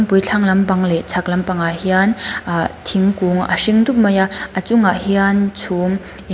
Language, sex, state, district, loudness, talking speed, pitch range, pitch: Mizo, female, Mizoram, Aizawl, -16 LUFS, 180 wpm, 185-200 Hz, 190 Hz